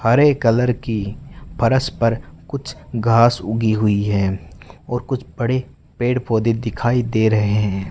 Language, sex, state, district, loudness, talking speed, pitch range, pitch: Hindi, male, Rajasthan, Bikaner, -19 LUFS, 145 wpm, 105-125 Hz, 115 Hz